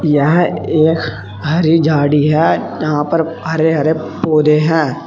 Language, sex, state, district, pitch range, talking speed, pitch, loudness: Hindi, male, Uttar Pradesh, Saharanpur, 150-160 Hz, 130 wpm, 155 Hz, -14 LUFS